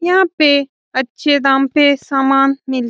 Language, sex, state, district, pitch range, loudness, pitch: Hindi, female, Bihar, Saran, 270-290 Hz, -14 LUFS, 275 Hz